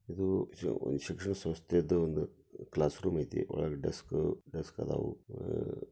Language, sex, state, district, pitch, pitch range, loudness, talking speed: Kannada, male, Karnataka, Dharwad, 85 Hz, 85-95 Hz, -35 LUFS, 130 wpm